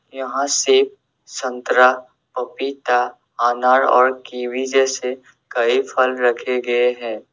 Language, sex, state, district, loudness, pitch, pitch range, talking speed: Hindi, male, Assam, Sonitpur, -18 LUFS, 125 Hz, 125-135 Hz, 105 wpm